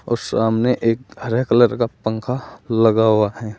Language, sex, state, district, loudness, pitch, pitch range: Hindi, male, Uttar Pradesh, Saharanpur, -18 LUFS, 115 Hz, 110-120 Hz